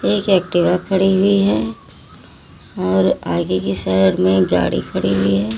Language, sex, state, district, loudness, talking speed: Hindi, female, Uttar Pradesh, Lalitpur, -16 LUFS, 150 wpm